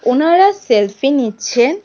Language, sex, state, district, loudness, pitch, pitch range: Bengali, female, Tripura, West Tripura, -13 LUFS, 270 Hz, 240-355 Hz